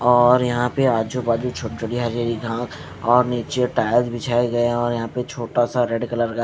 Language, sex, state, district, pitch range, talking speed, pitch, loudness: Hindi, male, Punjab, Fazilka, 115-125 Hz, 225 wpm, 120 Hz, -21 LUFS